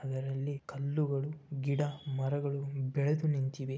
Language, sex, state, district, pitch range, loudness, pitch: Kannada, male, Karnataka, Bellary, 135-145 Hz, -34 LUFS, 140 Hz